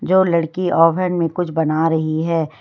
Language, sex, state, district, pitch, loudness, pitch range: Hindi, female, Jharkhand, Ranchi, 165 Hz, -17 LUFS, 160-180 Hz